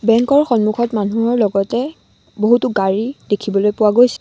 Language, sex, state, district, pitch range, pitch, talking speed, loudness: Assamese, female, Assam, Sonitpur, 210-240 Hz, 225 Hz, 130 wpm, -16 LUFS